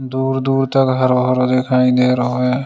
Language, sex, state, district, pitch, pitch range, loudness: Hindi, male, Uttar Pradesh, Jalaun, 130 Hz, 125-135 Hz, -15 LUFS